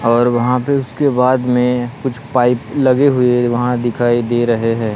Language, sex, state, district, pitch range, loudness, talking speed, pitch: Hindi, male, Maharashtra, Gondia, 120-130 Hz, -15 LUFS, 180 wpm, 125 Hz